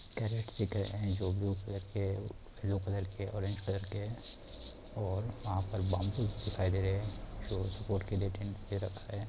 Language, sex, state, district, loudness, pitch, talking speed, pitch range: Hindi, male, Uttar Pradesh, Varanasi, -37 LUFS, 100 Hz, 205 wpm, 95-105 Hz